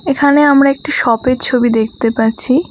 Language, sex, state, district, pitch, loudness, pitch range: Bengali, female, West Bengal, Alipurduar, 255 Hz, -12 LUFS, 230-280 Hz